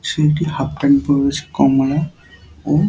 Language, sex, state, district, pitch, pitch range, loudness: Bengali, male, West Bengal, Dakshin Dinajpur, 140 Hz, 135-155 Hz, -17 LUFS